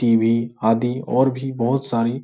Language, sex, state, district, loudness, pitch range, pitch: Hindi, male, Bihar, Jahanabad, -20 LUFS, 115-130 Hz, 120 Hz